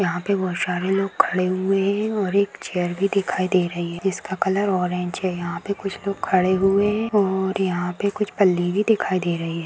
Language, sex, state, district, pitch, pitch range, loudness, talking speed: Hindi, female, Bihar, Jahanabad, 190 Hz, 180-200 Hz, -22 LUFS, 215 wpm